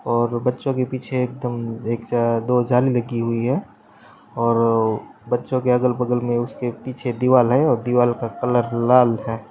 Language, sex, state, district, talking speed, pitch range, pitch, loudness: Hindi, male, Maharashtra, Pune, 170 wpm, 115-125 Hz, 120 Hz, -20 LUFS